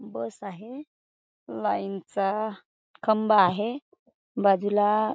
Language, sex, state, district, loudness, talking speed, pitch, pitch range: Marathi, female, Maharashtra, Chandrapur, -26 LUFS, 95 wpm, 205 Hz, 195-220 Hz